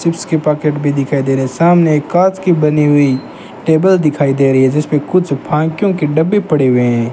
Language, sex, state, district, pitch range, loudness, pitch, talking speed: Hindi, male, Rajasthan, Bikaner, 140-170 Hz, -13 LUFS, 150 Hz, 225 wpm